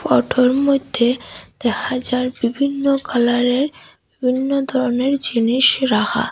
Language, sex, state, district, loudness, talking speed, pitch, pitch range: Bengali, female, Assam, Hailakandi, -17 LUFS, 95 wpm, 255 Hz, 245-275 Hz